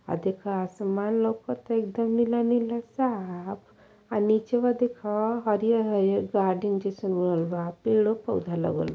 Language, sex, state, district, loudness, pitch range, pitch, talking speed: Bhojpuri, female, Uttar Pradesh, Ghazipur, -27 LUFS, 195-230 Hz, 210 Hz, 145 wpm